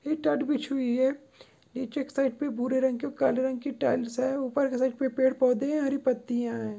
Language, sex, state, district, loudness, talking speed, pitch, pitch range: Hindi, female, Goa, North and South Goa, -28 LUFS, 230 wpm, 260 Hz, 255-275 Hz